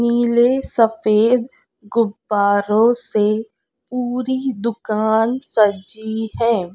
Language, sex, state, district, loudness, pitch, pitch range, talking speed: Hindi, female, Bihar, Purnia, -18 LUFS, 230 Hz, 215-245 Hz, 70 wpm